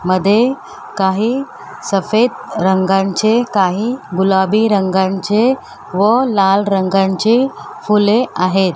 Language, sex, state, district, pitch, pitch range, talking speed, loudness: Marathi, female, Maharashtra, Mumbai Suburban, 200 Hz, 190-225 Hz, 80 wpm, -14 LUFS